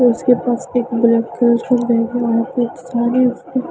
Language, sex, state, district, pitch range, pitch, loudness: Hindi, female, Himachal Pradesh, Shimla, 235-250 Hz, 245 Hz, -16 LUFS